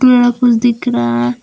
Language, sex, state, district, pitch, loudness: Hindi, female, Jharkhand, Deoghar, 235 Hz, -13 LUFS